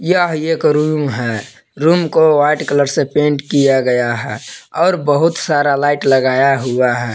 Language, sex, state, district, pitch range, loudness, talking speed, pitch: Hindi, male, Jharkhand, Palamu, 130-155 Hz, -14 LUFS, 150 wpm, 145 Hz